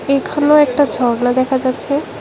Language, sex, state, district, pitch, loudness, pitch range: Bengali, female, Tripura, West Tripura, 275 Hz, -15 LUFS, 255-290 Hz